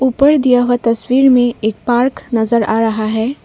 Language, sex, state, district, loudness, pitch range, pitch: Hindi, female, Assam, Kamrup Metropolitan, -13 LUFS, 225-255 Hz, 245 Hz